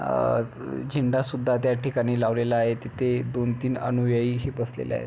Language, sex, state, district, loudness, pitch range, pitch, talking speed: Marathi, male, Maharashtra, Pune, -25 LUFS, 120-130 Hz, 125 Hz, 165 wpm